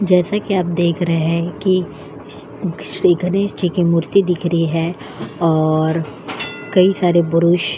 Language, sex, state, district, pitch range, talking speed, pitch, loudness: Hindi, female, Goa, North and South Goa, 165-180 Hz, 155 wpm, 170 Hz, -17 LUFS